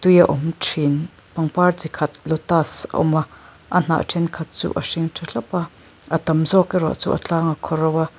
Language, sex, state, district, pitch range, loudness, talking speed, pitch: Mizo, female, Mizoram, Aizawl, 155-170 Hz, -20 LUFS, 220 wpm, 160 Hz